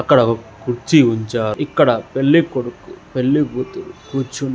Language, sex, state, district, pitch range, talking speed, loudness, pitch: Telugu, male, Andhra Pradesh, Guntur, 120-140 Hz, 120 wpm, -17 LUFS, 130 Hz